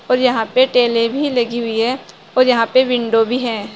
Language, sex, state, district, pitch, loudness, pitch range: Hindi, female, Uttar Pradesh, Saharanpur, 240 Hz, -16 LUFS, 230-255 Hz